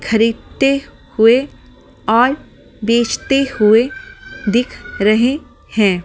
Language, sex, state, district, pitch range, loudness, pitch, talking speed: Hindi, female, Delhi, New Delhi, 220-275 Hz, -15 LUFS, 235 Hz, 80 wpm